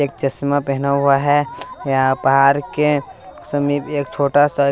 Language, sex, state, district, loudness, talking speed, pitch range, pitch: Hindi, male, Bihar, West Champaran, -17 LUFS, 155 wpm, 135-145 Hz, 140 Hz